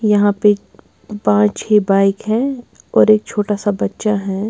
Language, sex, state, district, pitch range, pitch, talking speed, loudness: Hindi, female, Bihar, West Champaran, 195-215 Hz, 205 Hz, 160 wpm, -16 LUFS